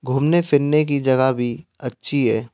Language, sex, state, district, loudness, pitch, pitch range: Hindi, male, Madhya Pradesh, Bhopal, -19 LUFS, 135 Hz, 125-145 Hz